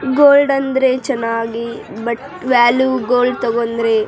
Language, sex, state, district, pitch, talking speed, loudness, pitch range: Kannada, female, Karnataka, Raichur, 245 Hz, 120 wpm, -15 LUFS, 230-265 Hz